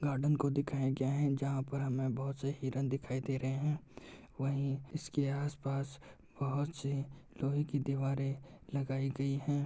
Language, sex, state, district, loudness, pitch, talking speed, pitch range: Hindi, male, Uttar Pradesh, Muzaffarnagar, -36 LUFS, 140 Hz, 160 wpm, 135-140 Hz